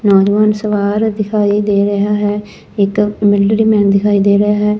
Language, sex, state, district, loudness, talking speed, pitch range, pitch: Punjabi, female, Punjab, Fazilka, -13 LUFS, 160 wpm, 200-210 Hz, 205 Hz